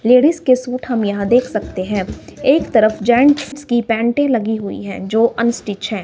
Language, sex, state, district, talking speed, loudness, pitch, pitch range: Hindi, female, Himachal Pradesh, Shimla, 190 wpm, -16 LUFS, 235 Hz, 215-250 Hz